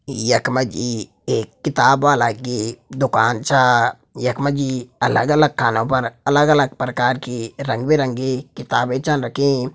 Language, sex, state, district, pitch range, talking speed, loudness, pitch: Garhwali, male, Uttarakhand, Tehri Garhwal, 120-140 Hz, 140 wpm, -18 LUFS, 130 Hz